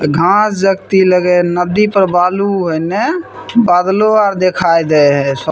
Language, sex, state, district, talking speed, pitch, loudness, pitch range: Maithili, male, Bihar, Samastipur, 150 wpm, 185 Hz, -12 LUFS, 170-200 Hz